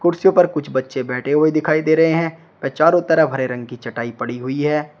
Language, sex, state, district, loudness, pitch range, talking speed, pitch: Hindi, male, Uttar Pradesh, Shamli, -18 LUFS, 130-165 Hz, 240 wpm, 150 Hz